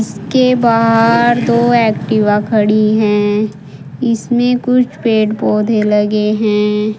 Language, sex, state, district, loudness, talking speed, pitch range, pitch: Hindi, female, Uttar Pradesh, Saharanpur, -13 LUFS, 105 wpm, 210-235 Hz, 215 Hz